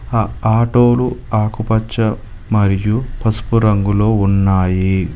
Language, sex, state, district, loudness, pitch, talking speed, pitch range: Telugu, male, Telangana, Mahabubabad, -15 LUFS, 110 Hz, 80 wpm, 100-115 Hz